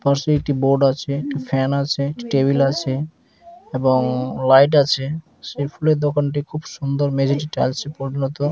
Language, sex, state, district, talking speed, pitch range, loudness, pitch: Bengali, male, West Bengal, Dakshin Dinajpur, 135 wpm, 135-145 Hz, -19 LUFS, 140 Hz